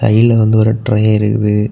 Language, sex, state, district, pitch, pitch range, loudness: Tamil, male, Tamil Nadu, Kanyakumari, 110 Hz, 105-110 Hz, -12 LUFS